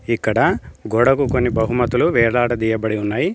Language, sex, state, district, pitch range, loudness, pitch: Telugu, male, Telangana, Komaram Bheem, 110-125 Hz, -18 LUFS, 115 Hz